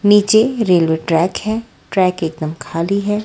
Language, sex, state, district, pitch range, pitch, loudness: Hindi, female, Haryana, Rohtak, 165-210 Hz, 190 Hz, -16 LUFS